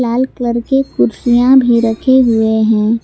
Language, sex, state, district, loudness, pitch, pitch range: Hindi, female, Jharkhand, Palamu, -12 LUFS, 240 Hz, 220-255 Hz